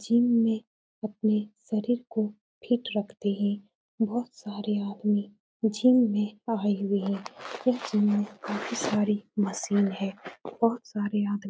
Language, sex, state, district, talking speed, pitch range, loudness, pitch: Hindi, female, Uttar Pradesh, Muzaffarnagar, 125 wpm, 205-225 Hz, -28 LUFS, 210 Hz